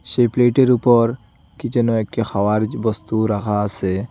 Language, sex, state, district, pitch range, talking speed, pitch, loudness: Bengali, male, Assam, Hailakandi, 105-120 Hz, 145 wpm, 110 Hz, -18 LUFS